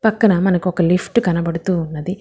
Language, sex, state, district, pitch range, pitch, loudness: Telugu, female, Telangana, Hyderabad, 170-195 Hz, 180 Hz, -17 LUFS